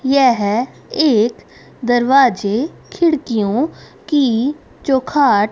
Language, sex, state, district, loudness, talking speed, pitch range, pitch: Hindi, female, Haryana, Rohtak, -16 LUFS, 65 wpm, 230-285 Hz, 260 Hz